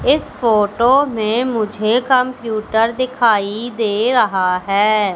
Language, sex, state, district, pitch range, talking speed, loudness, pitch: Hindi, female, Madhya Pradesh, Katni, 210-250 Hz, 105 wpm, -16 LUFS, 225 Hz